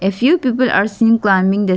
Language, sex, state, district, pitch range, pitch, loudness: English, female, Arunachal Pradesh, Lower Dibang Valley, 195-245 Hz, 210 Hz, -14 LUFS